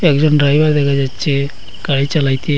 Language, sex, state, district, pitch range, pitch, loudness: Bengali, male, Assam, Hailakandi, 140-150 Hz, 145 Hz, -15 LUFS